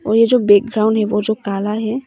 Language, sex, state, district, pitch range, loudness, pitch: Hindi, female, Arunachal Pradesh, Papum Pare, 210-225 Hz, -15 LUFS, 215 Hz